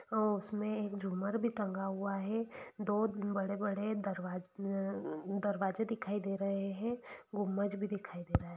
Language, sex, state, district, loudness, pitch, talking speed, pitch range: Hindi, female, Bihar, Saran, -38 LUFS, 200 Hz, 155 wpm, 195-210 Hz